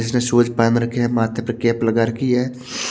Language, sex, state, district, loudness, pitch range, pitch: Hindi, male, Haryana, Jhajjar, -19 LUFS, 115-125 Hz, 120 Hz